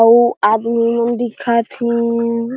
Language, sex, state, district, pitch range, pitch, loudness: Chhattisgarhi, female, Chhattisgarh, Jashpur, 230-240 Hz, 235 Hz, -16 LUFS